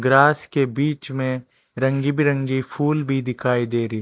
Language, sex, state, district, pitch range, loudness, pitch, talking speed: Hindi, male, Chhattisgarh, Raipur, 130-145 Hz, -21 LUFS, 135 Hz, 180 wpm